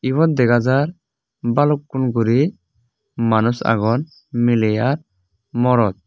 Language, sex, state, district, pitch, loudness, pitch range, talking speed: Chakma, male, Tripura, West Tripura, 120 Hz, -18 LUFS, 115-140 Hz, 90 wpm